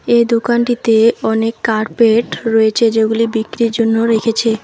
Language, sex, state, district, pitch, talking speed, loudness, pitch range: Bengali, female, West Bengal, Alipurduar, 225 Hz, 115 wpm, -14 LUFS, 220-230 Hz